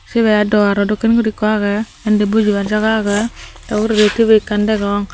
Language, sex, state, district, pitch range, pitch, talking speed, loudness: Chakma, female, Tripura, Dhalai, 205-220 Hz, 215 Hz, 185 wpm, -15 LUFS